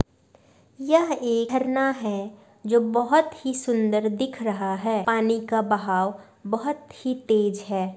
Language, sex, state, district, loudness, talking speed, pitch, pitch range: Hindi, female, Bihar, Madhepura, -24 LUFS, 135 wpm, 225 Hz, 205-260 Hz